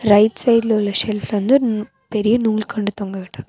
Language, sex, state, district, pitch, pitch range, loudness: Tamil, female, Tamil Nadu, Nilgiris, 215 Hz, 205-230 Hz, -18 LUFS